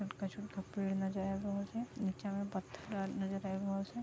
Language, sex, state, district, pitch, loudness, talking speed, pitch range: Maithili, female, Bihar, Vaishali, 195 Hz, -40 LUFS, 225 wpm, 195-200 Hz